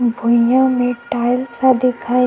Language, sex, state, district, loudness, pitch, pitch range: Chhattisgarhi, female, Chhattisgarh, Sukma, -16 LUFS, 245 Hz, 235-255 Hz